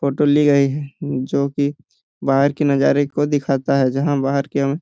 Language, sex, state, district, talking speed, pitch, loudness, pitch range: Hindi, male, Jharkhand, Jamtara, 200 wpm, 140 Hz, -18 LUFS, 140-145 Hz